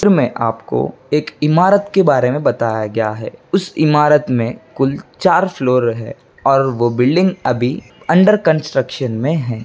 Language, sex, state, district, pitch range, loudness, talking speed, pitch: Hindi, male, Bihar, Gaya, 125-160 Hz, -15 LUFS, 160 wpm, 135 Hz